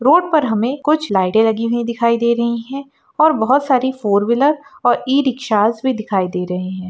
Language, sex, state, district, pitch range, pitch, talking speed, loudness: Hindi, female, Bihar, Begusarai, 220-275 Hz, 235 Hz, 210 wpm, -16 LUFS